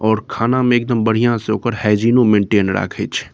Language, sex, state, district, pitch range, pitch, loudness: Maithili, male, Bihar, Saharsa, 105-120 Hz, 110 Hz, -16 LUFS